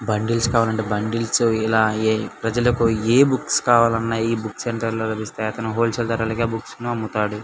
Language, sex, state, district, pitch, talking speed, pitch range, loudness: Telugu, male, Andhra Pradesh, Anantapur, 115 Hz, 160 wpm, 110-115 Hz, -20 LUFS